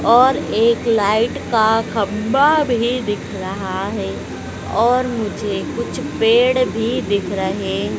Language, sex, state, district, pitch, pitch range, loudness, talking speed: Hindi, female, Madhya Pradesh, Dhar, 220 Hz, 195-240 Hz, -18 LUFS, 120 wpm